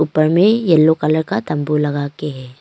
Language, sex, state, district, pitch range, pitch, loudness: Hindi, female, Arunachal Pradesh, Longding, 145-160 Hz, 155 Hz, -15 LUFS